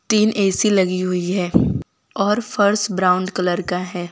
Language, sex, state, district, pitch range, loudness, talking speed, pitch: Hindi, female, Gujarat, Valsad, 180-210 Hz, -19 LUFS, 160 wpm, 190 Hz